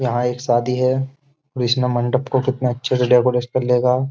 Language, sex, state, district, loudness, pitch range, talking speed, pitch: Hindi, male, Uttar Pradesh, Jyotiba Phule Nagar, -19 LUFS, 125-130 Hz, 205 wpm, 125 Hz